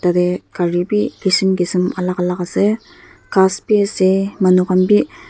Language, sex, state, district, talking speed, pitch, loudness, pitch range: Nagamese, female, Nagaland, Dimapur, 160 wpm, 190 Hz, -16 LUFS, 180-205 Hz